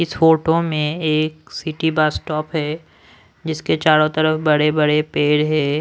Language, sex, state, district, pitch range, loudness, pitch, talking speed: Hindi, male, Odisha, Sambalpur, 150-160 Hz, -18 LUFS, 155 Hz, 155 wpm